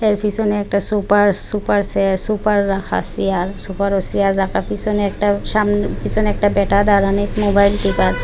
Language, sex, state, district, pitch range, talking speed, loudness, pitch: Bengali, female, Assam, Hailakandi, 195-210 Hz, 165 wpm, -17 LUFS, 200 Hz